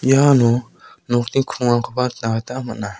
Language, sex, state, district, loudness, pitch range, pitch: Garo, male, Meghalaya, South Garo Hills, -19 LUFS, 115-130 Hz, 120 Hz